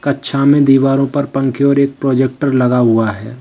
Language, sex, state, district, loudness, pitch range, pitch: Hindi, male, Uttar Pradesh, Lalitpur, -13 LUFS, 130-140 Hz, 135 Hz